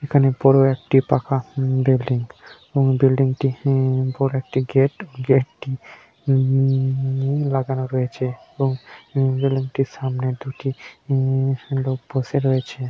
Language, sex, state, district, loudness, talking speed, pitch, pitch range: Bengali, male, West Bengal, Malda, -21 LUFS, 130 wpm, 135 Hz, 130-135 Hz